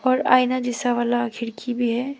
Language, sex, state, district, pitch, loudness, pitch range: Hindi, female, Arunachal Pradesh, Papum Pare, 245 Hz, -22 LUFS, 240-255 Hz